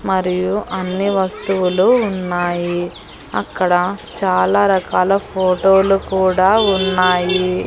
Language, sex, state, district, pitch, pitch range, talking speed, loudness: Telugu, female, Andhra Pradesh, Annamaya, 185 Hz, 180-195 Hz, 80 wpm, -16 LUFS